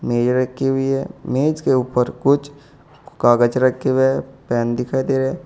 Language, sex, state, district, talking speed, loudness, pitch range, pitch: Hindi, male, Uttar Pradesh, Saharanpur, 185 wpm, -19 LUFS, 125-140 Hz, 130 Hz